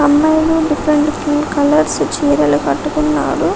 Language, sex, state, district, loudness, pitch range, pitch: Telugu, female, Telangana, Karimnagar, -14 LUFS, 290-305 Hz, 300 Hz